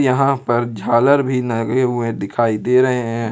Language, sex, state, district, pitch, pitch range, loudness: Hindi, male, Jharkhand, Ranchi, 120 Hz, 115-130 Hz, -17 LUFS